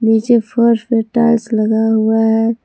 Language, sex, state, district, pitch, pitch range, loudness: Hindi, female, Jharkhand, Palamu, 225 Hz, 220-235 Hz, -14 LUFS